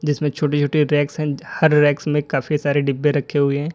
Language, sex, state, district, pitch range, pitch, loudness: Hindi, male, Uttar Pradesh, Lalitpur, 145-150 Hz, 145 Hz, -19 LUFS